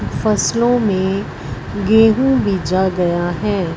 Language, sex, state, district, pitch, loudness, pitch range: Hindi, female, Punjab, Fazilka, 190 Hz, -16 LUFS, 175-215 Hz